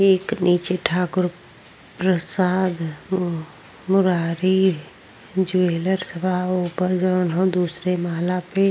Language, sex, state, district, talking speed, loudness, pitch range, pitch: Bhojpuri, female, Uttar Pradesh, Gorakhpur, 95 wpm, -21 LUFS, 175-185 Hz, 180 Hz